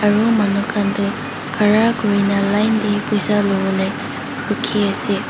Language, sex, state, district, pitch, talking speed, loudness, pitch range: Nagamese, female, Mizoram, Aizawl, 205 Hz, 125 wpm, -18 LUFS, 200-215 Hz